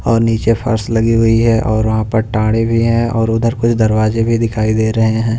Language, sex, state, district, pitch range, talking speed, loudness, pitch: Hindi, male, Punjab, Pathankot, 110-115 Hz, 235 wpm, -14 LUFS, 115 Hz